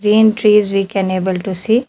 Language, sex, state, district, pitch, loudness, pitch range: English, female, Telangana, Hyderabad, 205 Hz, -14 LUFS, 190-215 Hz